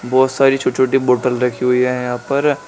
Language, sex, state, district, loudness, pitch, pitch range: Hindi, male, Uttar Pradesh, Shamli, -16 LUFS, 125 Hz, 125-135 Hz